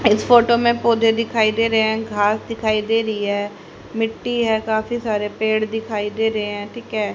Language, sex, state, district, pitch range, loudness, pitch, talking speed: Hindi, male, Haryana, Rohtak, 210-230 Hz, -19 LUFS, 220 Hz, 200 wpm